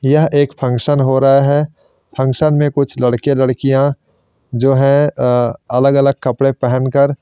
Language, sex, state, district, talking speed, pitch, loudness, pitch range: Hindi, male, Chandigarh, Chandigarh, 165 wpm, 135 Hz, -14 LUFS, 130-145 Hz